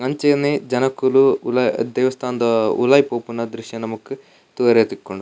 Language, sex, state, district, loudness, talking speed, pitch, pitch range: Tulu, male, Karnataka, Dakshina Kannada, -18 LUFS, 115 wpm, 125 Hz, 115-135 Hz